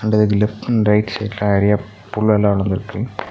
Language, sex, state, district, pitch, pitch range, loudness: Tamil, male, Tamil Nadu, Nilgiris, 105 Hz, 105-110 Hz, -17 LUFS